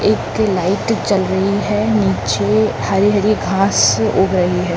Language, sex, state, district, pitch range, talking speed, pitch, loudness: Hindi, female, Chhattisgarh, Bilaspur, 180-205 Hz, 140 wpm, 195 Hz, -15 LUFS